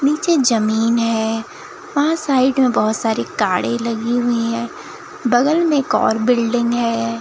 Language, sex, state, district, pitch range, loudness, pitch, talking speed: Hindi, female, Bihar, Katihar, 230-295 Hz, -17 LUFS, 240 Hz, 150 wpm